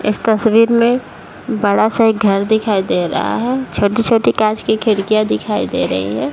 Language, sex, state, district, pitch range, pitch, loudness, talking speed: Hindi, male, Bihar, Jahanabad, 210-230 Hz, 220 Hz, -15 LUFS, 190 wpm